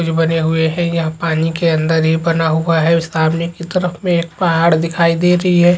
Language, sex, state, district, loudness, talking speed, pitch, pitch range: Chhattisgarhi, male, Chhattisgarh, Jashpur, -15 LUFS, 230 wpm, 165 Hz, 160-170 Hz